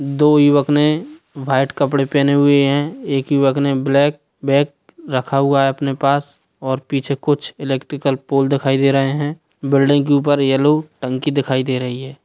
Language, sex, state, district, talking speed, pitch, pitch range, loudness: Hindi, male, Bihar, Sitamarhi, 175 wpm, 140 Hz, 135-145 Hz, -17 LUFS